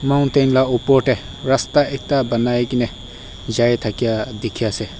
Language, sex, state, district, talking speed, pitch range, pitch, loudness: Nagamese, male, Nagaland, Kohima, 155 wpm, 110-135 Hz, 120 Hz, -18 LUFS